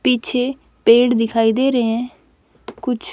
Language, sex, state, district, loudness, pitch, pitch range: Hindi, female, Haryana, Rohtak, -17 LUFS, 245 Hz, 230-255 Hz